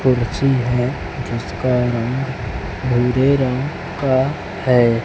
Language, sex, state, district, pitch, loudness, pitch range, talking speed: Hindi, male, Chhattisgarh, Raipur, 125 Hz, -19 LUFS, 120-135 Hz, 95 wpm